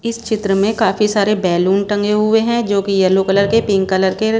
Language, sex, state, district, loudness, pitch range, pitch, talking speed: Hindi, female, Bihar, West Champaran, -15 LUFS, 195-220 Hz, 205 Hz, 230 wpm